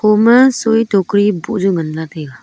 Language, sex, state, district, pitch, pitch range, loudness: Wancho, female, Arunachal Pradesh, Longding, 205 Hz, 165-225 Hz, -13 LUFS